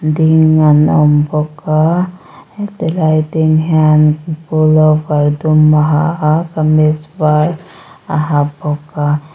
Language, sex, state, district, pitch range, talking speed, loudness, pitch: Mizo, female, Mizoram, Aizawl, 150-160 Hz, 130 wpm, -12 LUFS, 155 Hz